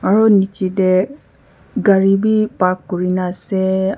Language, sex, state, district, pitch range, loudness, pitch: Nagamese, female, Nagaland, Kohima, 185-210 Hz, -16 LUFS, 190 Hz